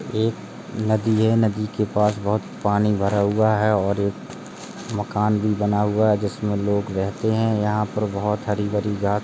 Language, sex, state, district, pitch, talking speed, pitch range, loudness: Hindi, male, Uttar Pradesh, Jalaun, 105 Hz, 190 wpm, 105-110 Hz, -22 LUFS